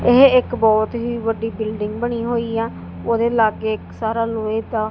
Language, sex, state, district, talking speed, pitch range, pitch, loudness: Punjabi, female, Punjab, Kapurthala, 185 wpm, 220-235 Hz, 225 Hz, -19 LUFS